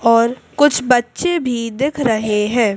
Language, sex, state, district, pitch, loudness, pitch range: Hindi, female, Madhya Pradesh, Bhopal, 240 Hz, -16 LUFS, 230-270 Hz